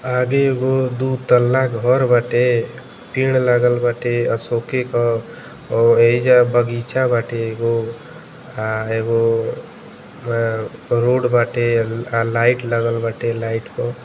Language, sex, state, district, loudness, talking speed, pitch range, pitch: Bhojpuri, male, Uttar Pradesh, Deoria, -18 LUFS, 105 wpm, 115-125 Hz, 120 Hz